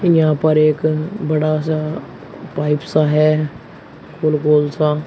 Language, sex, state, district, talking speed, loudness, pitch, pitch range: Hindi, male, Uttar Pradesh, Shamli, 130 wpm, -17 LUFS, 155 Hz, 150-155 Hz